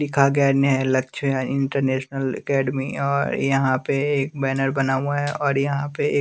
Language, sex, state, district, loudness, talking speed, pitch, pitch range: Hindi, male, Bihar, West Champaran, -22 LUFS, 185 wpm, 135 Hz, 135-140 Hz